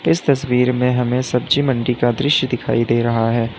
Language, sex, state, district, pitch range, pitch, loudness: Hindi, male, Uttar Pradesh, Lalitpur, 115-130 Hz, 125 Hz, -17 LUFS